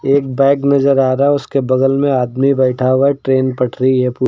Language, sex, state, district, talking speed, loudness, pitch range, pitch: Hindi, male, Uttar Pradesh, Lucknow, 195 wpm, -14 LUFS, 130-140 Hz, 135 Hz